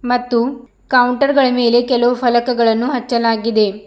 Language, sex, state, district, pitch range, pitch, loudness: Kannada, female, Karnataka, Bidar, 235-250 Hz, 245 Hz, -15 LUFS